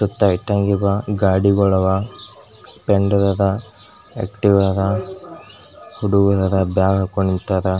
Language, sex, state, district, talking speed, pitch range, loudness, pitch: Kannada, male, Karnataka, Gulbarga, 100 wpm, 95-100 Hz, -18 LUFS, 100 Hz